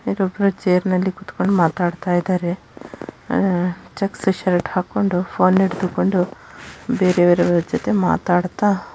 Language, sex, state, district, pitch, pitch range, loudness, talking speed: Kannada, female, Karnataka, Shimoga, 185 Hz, 180-195 Hz, -19 LUFS, 100 wpm